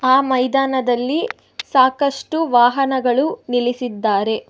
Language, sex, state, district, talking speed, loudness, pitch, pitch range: Kannada, female, Karnataka, Bangalore, 65 wpm, -17 LUFS, 260 Hz, 245-275 Hz